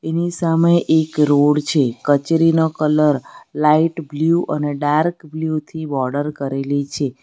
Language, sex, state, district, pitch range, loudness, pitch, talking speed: Gujarati, female, Gujarat, Valsad, 145-165 Hz, -18 LUFS, 150 Hz, 135 wpm